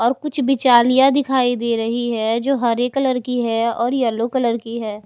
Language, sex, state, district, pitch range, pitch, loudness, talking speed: Hindi, female, Bihar, West Champaran, 230-260 Hz, 240 Hz, -18 LUFS, 200 wpm